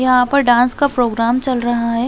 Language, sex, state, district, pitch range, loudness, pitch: Hindi, female, Chhattisgarh, Bastar, 240-255 Hz, -15 LUFS, 245 Hz